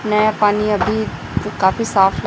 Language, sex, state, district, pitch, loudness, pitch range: Hindi, female, Chhattisgarh, Raipur, 210 Hz, -17 LUFS, 200-215 Hz